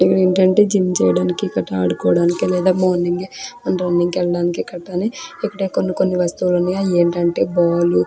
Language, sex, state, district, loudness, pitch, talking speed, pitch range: Telugu, female, Andhra Pradesh, Krishna, -17 LUFS, 180 Hz, 170 wpm, 175-185 Hz